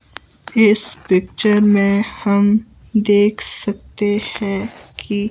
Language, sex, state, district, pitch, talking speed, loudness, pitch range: Hindi, male, Himachal Pradesh, Shimla, 205 Hz, 90 wpm, -15 LUFS, 205-215 Hz